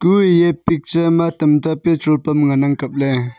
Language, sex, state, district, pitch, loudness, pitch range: Wancho, male, Arunachal Pradesh, Longding, 155 Hz, -15 LUFS, 140-170 Hz